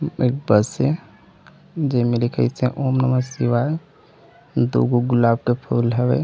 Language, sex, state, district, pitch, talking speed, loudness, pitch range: Chhattisgarhi, male, Chhattisgarh, Raigarh, 125 Hz, 145 wpm, -20 LUFS, 120-140 Hz